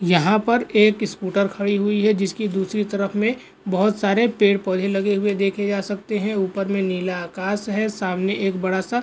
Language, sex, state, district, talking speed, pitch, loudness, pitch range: Hindi, male, Goa, North and South Goa, 200 wpm, 200 Hz, -21 LUFS, 195-210 Hz